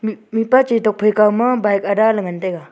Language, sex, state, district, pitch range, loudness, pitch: Wancho, female, Arunachal Pradesh, Longding, 205-225 Hz, -16 LUFS, 215 Hz